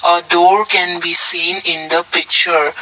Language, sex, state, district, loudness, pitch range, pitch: English, male, Assam, Kamrup Metropolitan, -12 LUFS, 170-185 Hz, 175 Hz